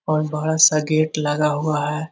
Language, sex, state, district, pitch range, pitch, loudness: Magahi, male, Bihar, Jahanabad, 150-155 Hz, 155 Hz, -19 LUFS